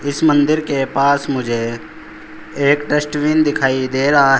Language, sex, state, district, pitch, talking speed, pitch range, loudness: Hindi, male, Uttar Pradesh, Saharanpur, 145 Hz, 135 wpm, 135-150 Hz, -16 LUFS